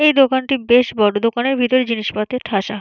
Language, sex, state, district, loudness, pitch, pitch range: Bengali, female, West Bengal, Jalpaiguri, -17 LUFS, 245 Hz, 215-260 Hz